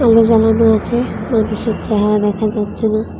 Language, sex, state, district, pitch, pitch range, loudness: Bengali, female, Tripura, West Tripura, 220 Hz, 215-225 Hz, -15 LUFS